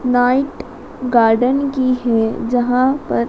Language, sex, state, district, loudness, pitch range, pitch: Hindi, female, Madhya Pradesh, Dhar, -16 LUFS, 235-260 Hz, 250 Hz